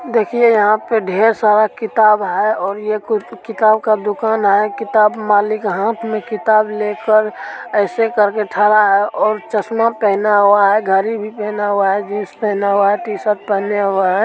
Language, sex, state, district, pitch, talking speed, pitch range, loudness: Maithili, female, Bihar, Supaul, 210 Hz, 185 wpm, 205-220 Hz, -15 LUFS